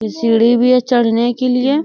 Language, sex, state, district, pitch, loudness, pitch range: Hindi, female, Bihar, Bhagalpur, 245 Hz, -13 LUFS, 230-255 Hz